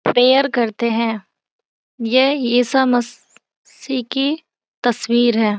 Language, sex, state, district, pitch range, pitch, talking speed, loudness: Hindi, female, Bihar, Saran, 230-265 Hz, 245 Hz, 95 wpm, -17 LUFS